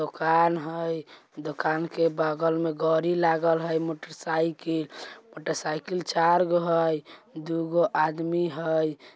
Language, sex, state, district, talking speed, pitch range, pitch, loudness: Bajjika, male, Bihar, Vaishali, 125 wpm, 160-165 Hz, 165 Hz, -26 LUFS